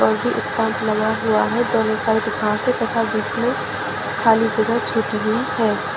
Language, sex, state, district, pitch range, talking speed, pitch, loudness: Hindi, female, Bihar, Saharsa, 220-230 Hz, 160 wpm, 225 Hz, -20 LUFS